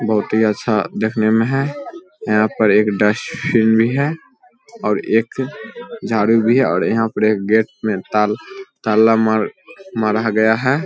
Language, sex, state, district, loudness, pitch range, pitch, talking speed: Hindi, male, Bihar, Vaishali, -17 LUFS, 110-140 Hz, 110 Hz, 145 wpm